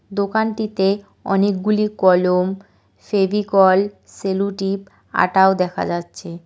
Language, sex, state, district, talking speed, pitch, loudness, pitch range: Bengali, female, West Bengal, Cooch Behar, 75 wpm, 195 Hz, -19 LUFS, 190-205 Hz